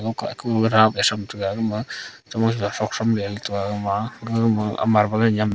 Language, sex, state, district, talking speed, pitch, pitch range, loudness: Wancho, male, Arunachal Pradesh, Longding, 150 wpm, 110 Hz, 105-115 Hz, -22 LUFS